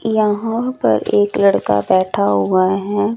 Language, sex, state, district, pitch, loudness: Hindi, female, Chandigarh, Chandigarh, 185 Hz, -16 LUFS